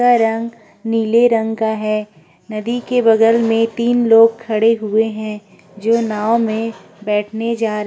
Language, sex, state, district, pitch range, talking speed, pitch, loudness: Hindi, female, Uttar Pradesh, Budaun, 215-230 Hz, 165 wpm, 225 Hz, -16 LUFS